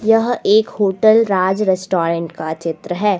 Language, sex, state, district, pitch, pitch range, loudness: Hindi, female, Jharkhand, Deoghar, 195 Hz, 175-215 Hz, -16 LUFS